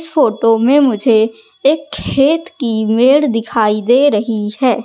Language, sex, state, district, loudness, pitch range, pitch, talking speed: Hindi, female, Madhya Pradesh, Katni, -13 LUFS, 220-285 Hz, 240 Hz, 150 wpm